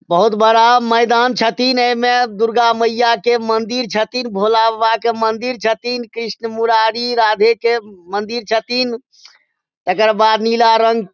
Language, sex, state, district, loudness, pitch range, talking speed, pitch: Maithili, male, Bihar, Supaul, -15 LUFS, 225-240 Hz, 140 wpm, 230 Hz